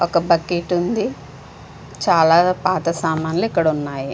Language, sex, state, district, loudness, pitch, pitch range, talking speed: Telugu, female, Andhra Pradesh, Visakhapatnam, -18 LUFS, 170 Hz, 160-180 Hz, 115 wpm